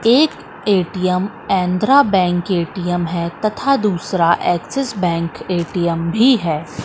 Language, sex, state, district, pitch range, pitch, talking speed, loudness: Hindi, female, Madhya Pradesh, Katni, 170-210 Hz, 180 Hz, 115 wpm, -17 LUFS